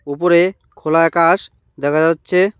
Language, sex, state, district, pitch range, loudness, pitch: Bengali, male, West Bengal, Cooch Behar, 160-180 Hz, -15 LUFS, 165 Hz